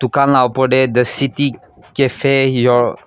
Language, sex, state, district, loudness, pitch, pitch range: Nagamese, male, Nagaland, Kohima, -14 LUFS, 130 Hz, 125-140 Hz